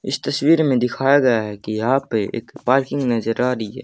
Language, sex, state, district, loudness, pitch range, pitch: Hindi, male, Haryana, Charkhi Dadri, -19 LUFS, 115-135 Hz, 125 Hz